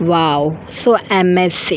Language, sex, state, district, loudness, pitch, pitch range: Hindi, female, Goa, North and South Goa, -14 LUFS, 180 Hz, 160-190 Hz